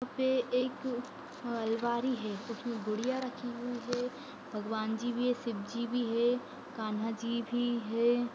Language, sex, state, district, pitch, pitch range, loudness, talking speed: Hindi, female, Uttar Pradesh, Budaun, 240 Hz, 230-250 Hz, -34 LUFS, 175 wpm